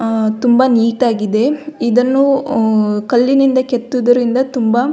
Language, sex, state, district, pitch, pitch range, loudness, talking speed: Kannada, female, Karnataka, Belgaum, 245 Hz, 230-260 Hz, -14 LUFS, 95 wpm